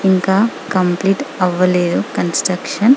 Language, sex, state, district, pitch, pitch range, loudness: Telugu, female, Telangana, Karimnagar, 190 Hz, 180-205 Hz, -16 LUFS